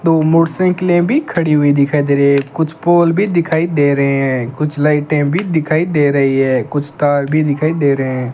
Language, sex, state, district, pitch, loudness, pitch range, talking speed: Hindi, male, Rajasthan, Bikaner, 150 Hz, -14 LUFS, 140-165 Hz, 215 wpm